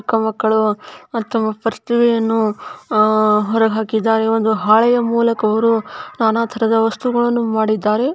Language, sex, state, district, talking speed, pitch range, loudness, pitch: Kannada, female, Karnataka, Chamarajanagar, 80 wpm, 220-235 Hz, -16 LUFS, 225 Hz